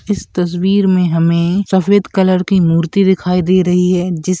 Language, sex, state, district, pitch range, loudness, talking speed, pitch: Bhojpuri, male, Uttar Pradesh, Gorakhpur, 175-190 Hz, -13 LUFS, 190 wpm, 185 Hz